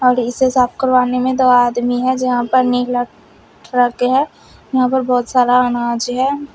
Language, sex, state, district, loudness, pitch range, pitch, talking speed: Hindi, female, Uttar Pradesh, Shamli, -15 LUFS, 245-255 Hz, 250 Hz, 165 wpm